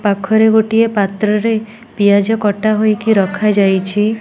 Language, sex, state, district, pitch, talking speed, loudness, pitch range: Odia, female, Odisha, Nuapada, 210 Hz, 100 wpm, -13 LUFS, 205-220 Hz